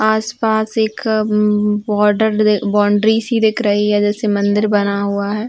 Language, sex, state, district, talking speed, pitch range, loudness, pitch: Hindi, female, Uttar Pradesh, Varanasi, 140 wpm, 205-220 Hz, -15 LUFS, 210 Hz